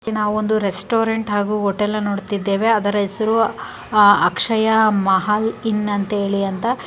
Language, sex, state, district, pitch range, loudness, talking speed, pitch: Kannada, female, Karnataka, Mysore, 200-220 Hz, -18 LUFS, 130 wpm, 210 Hz